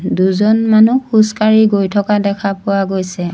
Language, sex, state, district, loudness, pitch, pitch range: Assamese, female, Assam, Sonitpur, -13 LUFS, 205 Hz, 195-220 Hz